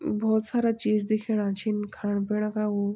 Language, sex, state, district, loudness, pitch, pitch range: Garhwali, female, Uttarakhand, Tehri Garhwal, -27 LUFS, 215 Hz, 205-220 Hz